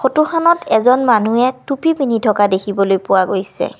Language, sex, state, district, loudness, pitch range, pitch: Assamese, female, Assam, Kamrup Metropolitan, -15 LUFS, 200-275 Hz, 230 Hz